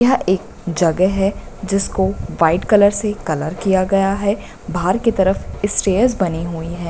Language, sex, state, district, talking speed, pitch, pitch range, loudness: Hindi, female, Bihar, Bhagalpur, 165 wpm, 190 Hz, 175-200 Hz, -18 LUFS